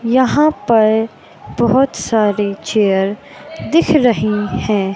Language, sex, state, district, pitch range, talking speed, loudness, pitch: Hindi, male, Madhya Pradesh, Katni, 205-255 Hz, 95 wpm, -15 LUFS, 220 Hz